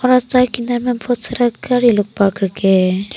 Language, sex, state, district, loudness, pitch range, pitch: Hindi, female, Arunachal Pradesh, Papum Pare, -16 LUFS, 200-245 Hz, 240 Hz